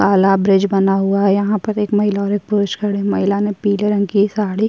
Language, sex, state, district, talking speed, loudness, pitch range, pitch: Hindi, female, Uttarakhand, Tehri Garhwal, 270 wpm, -16 LUFS, 195-210 Hz, 200 Hz